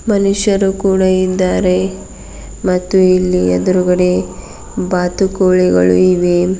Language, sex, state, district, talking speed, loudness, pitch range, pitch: Kannada, female, Karnataka, Bidar, 75 wpm, -13 LUFS, 180-190 Hz, 185 Hz